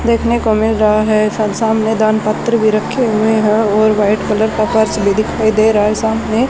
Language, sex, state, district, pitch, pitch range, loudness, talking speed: Hindi, female, Haryana, Charkhi Dadri, 220 Hz, 215-220 Hz, -13 LUFS, 220 wpm